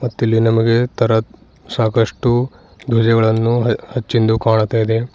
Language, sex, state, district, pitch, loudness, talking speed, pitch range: Kannada, male, Karnataka, Bidar, 115 Hz, -16 LUFS, 105 wpm, 110-120 Hz